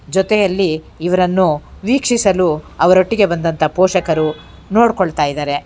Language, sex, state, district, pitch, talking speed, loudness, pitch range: Kannada, female, Karnataka, Bangalore, 180 Hz, 85 wpm, -15 LUFS, 155-195 Hz